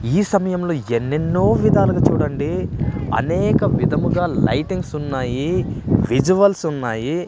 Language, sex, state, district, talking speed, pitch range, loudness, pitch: Telugu, male, Andhra Pradesh, Manyam, 90 wpm, 135-185 Hz, -19 LUFS, 160 Hz